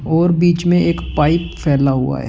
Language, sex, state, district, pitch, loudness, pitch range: Hindi, male, Uttar Pradesh, Muzaffarnagar, 165 Hz, -15 LUFS, 145-175 Hz